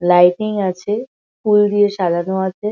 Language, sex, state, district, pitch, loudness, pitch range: Bengali, female, West Bengal, Kolkata, 200 Hz, -17 LUFS, 180-210 Hz